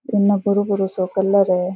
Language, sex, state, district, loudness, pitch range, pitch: Rajasthani, female, Rajasthan, Churu, -18 LUFS, 190-205 Hz, 200 Hz